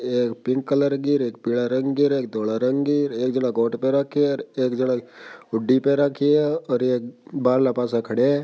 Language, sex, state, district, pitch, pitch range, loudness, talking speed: Marwari, male, Rajasthan, Churu, 130 Hz, 120-140 Hz, -22 LUFS, 215 wpm